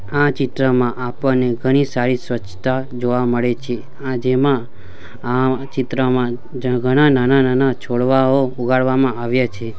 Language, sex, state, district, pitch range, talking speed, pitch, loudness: Gujarati, male, Gujarat, Valsad, 120-130 Hz, 120 wpm, 125 Hz, -18 LUFS